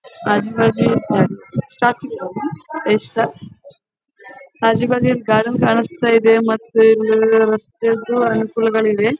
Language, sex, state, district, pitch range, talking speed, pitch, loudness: Kannada, female, Karnataka, Gulbarga, 220-240 Hz, 85 wpm, 225 Hz, -16 LUFS